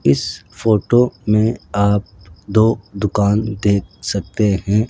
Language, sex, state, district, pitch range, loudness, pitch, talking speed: Hindi, male, Rajasthan, Jaipur, 100-110 Hz, -17 LUFS, 105 Hz, 110 wpm